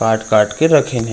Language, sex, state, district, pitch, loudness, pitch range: Chhattisgarhi, male, Chhattisgarh, Raigarh, 110 Hz, -14 LUFS, 110-130 Hz